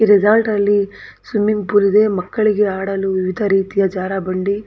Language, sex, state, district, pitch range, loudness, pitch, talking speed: Kannada, female, Karnataka, Dakshina Kannada, 195-210 Hz, -16 LUFS, 200 Hz, 140 wpm